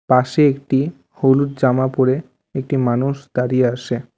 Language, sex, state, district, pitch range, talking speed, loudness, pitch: Bengali, male, West Bengal, Alipurduar, 125-135 Hz, 130 wpm, -18 LUFS, 130 Hz